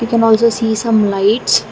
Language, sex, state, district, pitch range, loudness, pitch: English, female, Karnataka, Bangalore, 220-230 Hz, -13 LUFS, 225 Hz